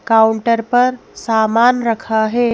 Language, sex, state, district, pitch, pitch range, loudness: Hindi, female, Madhya Pradesh, Bhopal, 230 Hz, 220-240 Hz, -15 LUFS